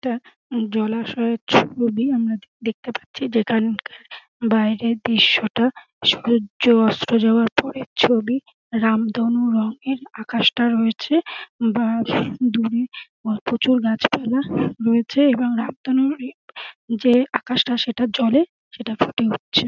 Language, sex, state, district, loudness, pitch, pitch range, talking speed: Bengali, female, West Bengal, Dakshin Dinajpur, -20 LUFS, 235 Hz, 225-255 Hz, 105 wpm